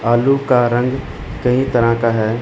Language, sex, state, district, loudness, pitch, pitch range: Hindi, male, Chandigarh, Chandigarh, -16 LUFS, 120 Hz, 115-130 Hz